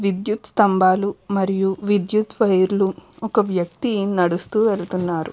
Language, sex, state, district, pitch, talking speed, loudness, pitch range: Telugu, female, Andhra Pradesh, Krishna, 195 Hz, 115 wpm, -20 LUFS, 185-210 Hz